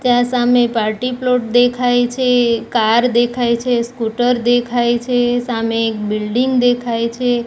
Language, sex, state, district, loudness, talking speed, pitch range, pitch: Gujarati, female, Gujarat, Gandhinagar, -16 LUFS, 135 wpm, 235-245 Hz, 245 Hz